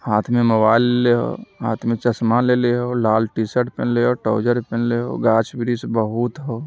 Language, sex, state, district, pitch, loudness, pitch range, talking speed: Magahi, male, Bihar, Jamui, 120 Hz, -19 LUFS, 115-120 Hz, 190 wpm